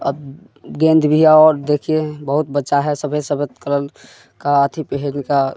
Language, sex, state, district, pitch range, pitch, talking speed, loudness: Hindi, male, Bihar, West Champaran, 140-155 Hz, 145 Hz, 160 wpm, -16 LUFS